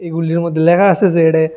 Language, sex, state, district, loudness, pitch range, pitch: Bengali, male, Tripura, West Tripura, -13 LUFS, 160-175 Hz, 170 Hz